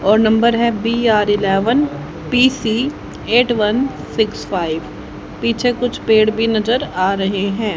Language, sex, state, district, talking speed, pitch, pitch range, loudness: Hindi, female, Haryana, Jhajjar, 110 wpm, 220 Hz, 195-235 Hz, -16 LUFS